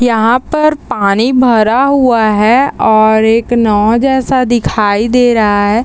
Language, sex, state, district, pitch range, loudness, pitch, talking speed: Hindi, female, Bihar, Madhepura, 215-255 Hz, -10 LUFS, 235 Hz, 145 wpm